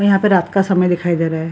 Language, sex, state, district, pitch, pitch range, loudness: Hindi, female, Bihar, Lakhisarai, 180 Hz, 170-195 Hz, -15 LUFS